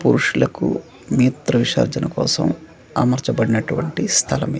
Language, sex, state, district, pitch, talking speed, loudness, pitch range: Telugu, male, Andhra Pradesh, Manyam, 130 Hz, 80 wpm, -19 LUFS, 125-160 Hz